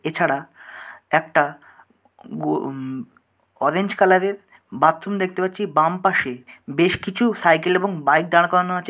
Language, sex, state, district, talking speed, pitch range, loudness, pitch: Bengali, male, West Bengal, Dakshin Dinajpur, 135 wpm, 155-195 Hz, -20 LUFS, 180 Hz